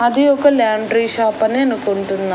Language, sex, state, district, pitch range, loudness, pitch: Telugu, female, Andhra Pradesh, Annamaya, 215-250 Hz, -15 LUFS, 225 Hz